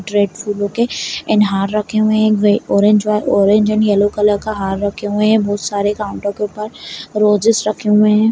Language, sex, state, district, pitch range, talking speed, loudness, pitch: Kumaoni, female, Uttarakhand, Uttarkashi, 205-215 Hz, 200 wpm, -15 LUFS, 210 Hz